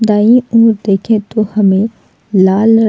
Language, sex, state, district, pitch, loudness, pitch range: Hindi, female, Uttar Pradesh, Jalaun, 215 Hz, -11 LUFS, 195-225 Hz